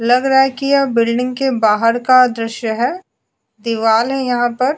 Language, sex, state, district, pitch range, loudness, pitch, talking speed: Hindi, female, Goa, North and South Goa, 230-265 Hz, -15 LUFS, 245 Hz, 175 wpm